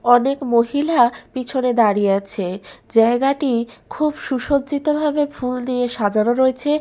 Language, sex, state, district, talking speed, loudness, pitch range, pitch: Bengali, female, West Bengal, Malda, 115 wpm, -19 LUFS, 235-280 Hz, 250 Hz